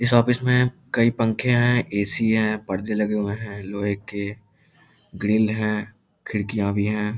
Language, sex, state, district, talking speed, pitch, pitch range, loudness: Hindi, male, Bihar, Lakhisarai, 160 wpm, 105 Hz, 100-115 Hz, -23 LUFS